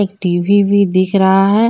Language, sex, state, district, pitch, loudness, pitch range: Hindi, female, Jharkhand, Deoghar, 200 Hz, -12 LUFS, 190-200 Hz